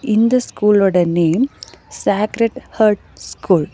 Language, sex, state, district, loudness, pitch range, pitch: Tamil, female, Tamil Nadu, Nilgiris, -16 LUFS, 180-230 Hz, 210 Hz